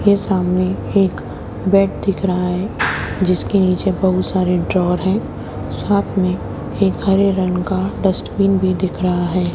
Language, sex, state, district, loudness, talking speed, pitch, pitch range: Hindi, female, Haryana, Jhajjar, -17 LUFS, 150 wpm, 185 Hz, 180-195 Hz